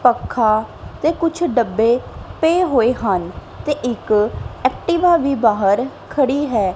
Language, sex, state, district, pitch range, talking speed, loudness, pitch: Punjabi, female, Punjab, Kapurthala, 220-315 Hz, 125 wpm, -18 LUFS, 245 Hz